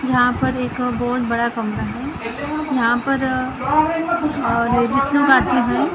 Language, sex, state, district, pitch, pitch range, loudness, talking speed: Hindi, female, Maharashtra, Gondia, 255 Hz, 245-285 Hz, -19 LUFS, 130 wpm